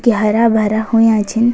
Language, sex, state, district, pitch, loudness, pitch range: Garhwali, female, Uttarakhand, Tehri Garhwal, 225 Hz, -13 LUFS, 215-230 Hz